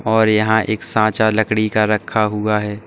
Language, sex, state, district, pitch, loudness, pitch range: Hindi, male, Uttar Pradesh, Saharanpur, 110 Hz, -17 LUFS, 105-110 Hz